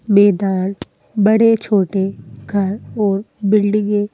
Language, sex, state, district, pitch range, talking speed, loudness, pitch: Hindi, female, Madhya Pradesh, Bhopal, 195-210 Hz, 85 wpm, -16 LUFS, 205 Hz